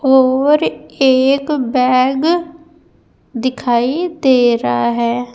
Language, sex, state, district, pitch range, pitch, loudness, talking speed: Hindi, female, Uttar Pradesh, Saharanpur, 245-300 Hz, 260 Hz, -14 LUFS, 80 wpm